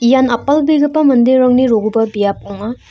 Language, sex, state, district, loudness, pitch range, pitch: Garo, female, Meghalaya, North Garo Hills, -12 LUFS, 225-265 Hz, 250 Hz